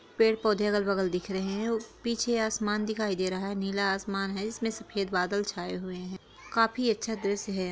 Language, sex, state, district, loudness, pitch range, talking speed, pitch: Hindi, female, Chhattisgarh, Korba, -30 LUFS, 195-220 Hz, 200 wpm, 205 Hz